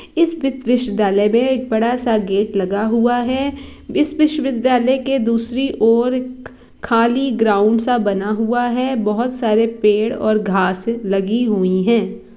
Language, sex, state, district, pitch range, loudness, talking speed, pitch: Hindi, female, Bihar, East Champaran, 215-255 Hz, -17 LUFS, 140 wpm, 230 Hz